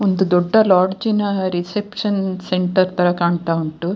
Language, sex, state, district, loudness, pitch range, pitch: Kannada, female, Karnataka, Dakshina Kannada, -18 LUFS, 175-200 Hz, 185 Hz